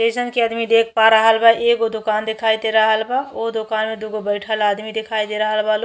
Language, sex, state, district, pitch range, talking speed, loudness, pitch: Bhojpuri, female, Uttar Pradesh, Ghazipur, 215-230 Hz, 245 wpm, -18 LUFS, 220 Hz